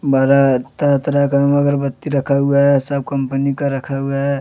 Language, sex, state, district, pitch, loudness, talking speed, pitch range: Hindi, male, Jharkhand, Deoghar, 140 Hz, -16 LUFS, 165 wpm, 135-140 Hz